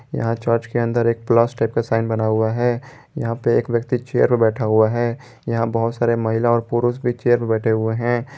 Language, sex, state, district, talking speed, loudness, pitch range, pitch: Hindi, male, Jharkhand, Garhwa, 230 wpm, -19 LUFS, 115-120 Hz, 115 Hz